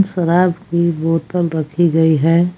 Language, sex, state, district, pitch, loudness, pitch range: Hindi, female, Jharkhand, Palamu, 170 Hz, -15 LUFS, 160-175 Hz